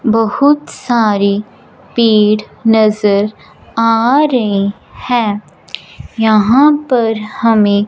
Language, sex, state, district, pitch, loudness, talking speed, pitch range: Hindi, male, Punjab, Fazilka, 225 Hz, -12 LUFS, 75 wpm, 210-240 Hz